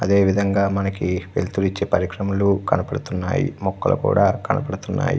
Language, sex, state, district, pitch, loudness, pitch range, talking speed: Telugu, male, Andhra Pradesh, Krishna, 100 Hz, -21 LUFS, 95-100 Hz, 115 wpm